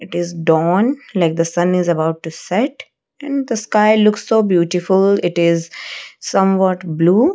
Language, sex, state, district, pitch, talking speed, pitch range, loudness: English, female, Odisha, Malkangiri, 180 Hz, 165 wpm, 170-220 Hz, -16 LUFS